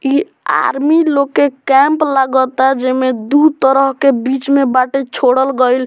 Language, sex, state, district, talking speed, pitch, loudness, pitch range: Bhojpuri, male, Bihar, Muzaffarpur, 165 wpm, 270 Hz, -13 LUFS, 260-280 Hz